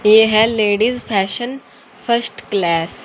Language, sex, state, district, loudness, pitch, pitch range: Hindi, female, Haryana, Charkhi Dadri, -16 LUFS, 220 Hz, 205-235 Hz